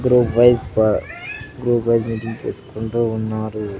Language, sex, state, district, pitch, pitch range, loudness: Telugu, male, Andhra Pradesh, Sri Satya Sai, 115 Hz, 110-120 Hz, -19 LUFS